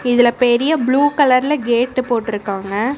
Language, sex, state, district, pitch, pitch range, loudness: Tamil, female, Tamil Nadu, Namakkal, 245 Hz, 235-270 Hz, -16 LUFS